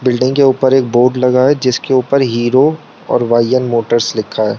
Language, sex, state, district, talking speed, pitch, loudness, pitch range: Hindi, male, Arunachal Pradesh, Lower Dibang Valley, 210 wpm, 125 Hz, -12 LUFS, 120-130 Hz